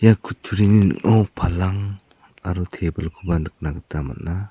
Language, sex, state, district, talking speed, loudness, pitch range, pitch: Garo, male, Meghalaya, South Garo Hills, 120 wpm, -21 LUFS, 85-100 Hz, 90 Hz